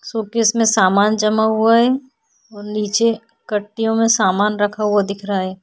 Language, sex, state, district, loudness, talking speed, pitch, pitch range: Hindi, female, Uttar Pradesh, Budaun, -17 LUFS, 170 wpm, 215 Hz, 205-225 Hz